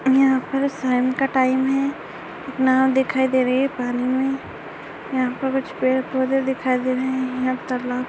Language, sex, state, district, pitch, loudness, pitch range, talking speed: Hindi, female, Chhattisgarh, Raigarh, 260 Hz, -21 LUFS, 255-270 Hz, 185 wpm